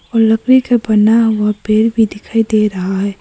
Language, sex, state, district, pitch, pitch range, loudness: Hindi, female, Arunachal Pradesh, Papum Pare, 220 Hz, 210-225 Hz, -13 LUFS